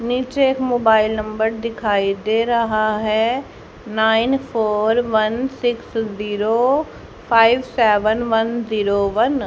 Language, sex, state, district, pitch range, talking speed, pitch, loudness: Hindi, female, Haryana, Jhajjar, 215-240 Hz, 115 wpm, 225 Hz, -18 LUFS